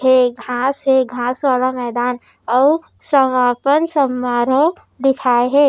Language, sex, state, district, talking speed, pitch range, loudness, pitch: Chhattisgarhi, female, Chhattisgarh, Raigarh, 115 wpm, 245-275 Hz, -16 LUFS, 260 Hz